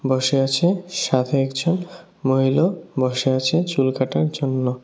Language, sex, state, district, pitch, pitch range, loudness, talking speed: Bengali, male, Tripura, West Tripura, 135 Hz, 130-170 Hz, -20 LUFS, 125 wpm